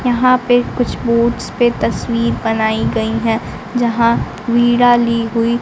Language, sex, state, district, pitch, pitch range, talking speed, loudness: Hindi, female, Bihar, Kaimur, 235 Hz, 230-245 Hz, 140 wpm, -15 LUFS